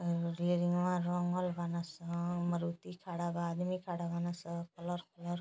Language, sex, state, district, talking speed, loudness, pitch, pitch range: Hindi, female, Uttar Pradesh, Gorakhpur, 155 wpm, -37 LUFS, 175 Hz, 170-175 Hz